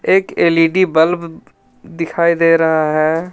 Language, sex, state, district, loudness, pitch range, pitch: Hindi, male, Jharkhand, Ranchi, -14 LUFS, 160-170 Hz, 165 Hz